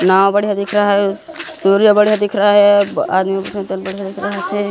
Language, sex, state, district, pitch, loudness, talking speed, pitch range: Hindi, male, Chhattisgarh, Kabirdham, 200 Hz, -14 LUFS, 125 wpm, 195-205 Hz